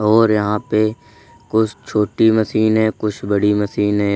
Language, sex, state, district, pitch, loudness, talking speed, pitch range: Hindi, male, Uttar Pradesh, Lalitpur, 105 Hz, -17 LUFS, 145 wpm, 105-110 Hz